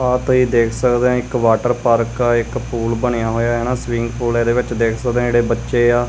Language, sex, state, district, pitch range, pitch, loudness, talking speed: Punjabi, male, Punjab, Kapurthala, 115-125 Hz, 120 Hz, -17 LUFS, 225 wpm